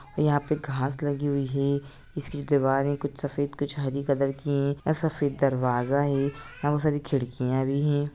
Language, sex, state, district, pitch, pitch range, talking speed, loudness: Hindi, female, Bihar, Gopalganj, 140 Hz, 140-145 Hz, 185 wpm, -27 LUFS